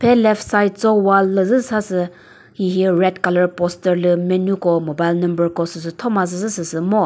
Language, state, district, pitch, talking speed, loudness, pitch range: Chakhesang, Nagaland, Dimapur, 185 Hz, 205 wpm, -17 LUFS, 175-205 Hz